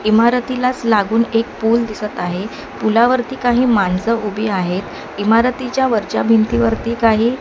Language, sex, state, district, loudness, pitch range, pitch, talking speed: Marathi, female, Maharashtra, Mumbai Suburban, -16 LUFS, 215-240 Hz, 230 Hz, 130 wpm